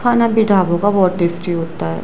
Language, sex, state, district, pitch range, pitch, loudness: Hindi, female, Gujarat, Gandhinagar, 170-205 Hz, 185 Hz, -16 LUFS